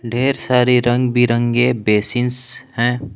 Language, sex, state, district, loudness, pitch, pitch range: Hindi, male, Jharkhand, Palamu, -16 LUFS, 125 Hz, 120-125 Hz